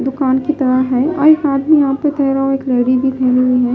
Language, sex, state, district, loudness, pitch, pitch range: Hindi, female, Himachal Pradesh, Shimla, -14 LUFS, 270 Hz, 255-285 Hz